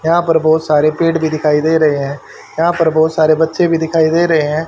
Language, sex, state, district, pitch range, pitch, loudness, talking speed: Hindi, male, Haryana, Charkhi Dadri, 155-165 Hz, 160 Hz, -13 LUFS, 255 wpm